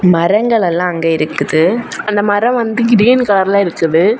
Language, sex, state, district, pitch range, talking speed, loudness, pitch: Tamil, female, Tamil Nadu, Kanyakumari, 170-230 Hz, 145 wpm, -13 LUFS, 200 Hz